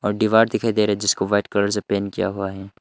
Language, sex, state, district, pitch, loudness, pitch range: Hindi, male, Arunachal Pradesh, Longding, 100 Hz, -20 LUFS, 100-110 Hz